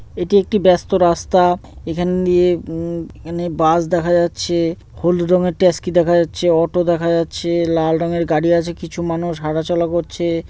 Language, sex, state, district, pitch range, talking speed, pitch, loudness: Bengali, male, West Bengal, North 24 Parganas, 165-175 Hz, 160 wpm, 170 Hz, -17 LUFS